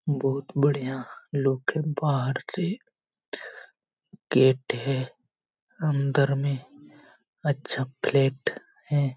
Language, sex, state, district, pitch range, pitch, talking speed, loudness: Hindi, male, Jharkhand, Jamtara, 135-145 Hz, 140 Hz, 85 wpm, -27 LUFS